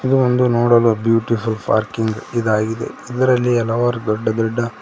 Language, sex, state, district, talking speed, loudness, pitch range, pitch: Kannada, male, Karnataka, Koppal, 110 wpm, -17 LUFS, 110-120 Hz, 115 Hz